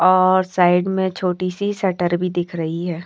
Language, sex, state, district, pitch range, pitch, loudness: Hindi, female, Haryana, Charkhi Dadri, 175-185 Hz, 180 Hz, -19 LUFS